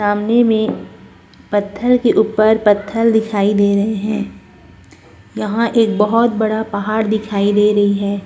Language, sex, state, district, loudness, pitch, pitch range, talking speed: Hindi, female, Uttarakhand, Tehri Garhwal, -15 LUFS, 210 Hz, 205-220 Hz, 140 wpm